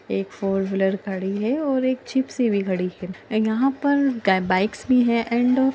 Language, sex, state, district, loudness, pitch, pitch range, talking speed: Hindi, female, Bihar, Vaishali, -22 LUFS, 220 Hz, 195-255 Hz, 200 wpm